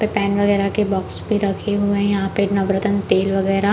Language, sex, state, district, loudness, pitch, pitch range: Hindi, female, Chhattisgarh, Balrampur, -19 LUFS, 200 Hz, 195-205 Hz